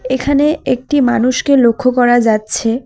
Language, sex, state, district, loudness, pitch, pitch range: Bengali, female, West Bengal, Alipurduar, -13 LUFS, 255 Hz, 240-275 Hz